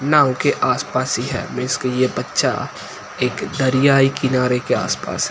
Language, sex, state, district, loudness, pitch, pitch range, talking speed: Hindi, male, Gujarat, Gandhinagar, -19 LUFS, 130 Hz, 125-140 Hz, 160 wpm